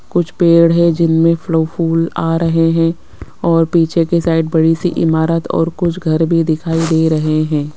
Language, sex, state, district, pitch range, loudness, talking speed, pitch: Hindi, female, Rajasthan, Jaipur, 160-170 Hz, -14 LUFS, 185 wpm, 165 Hz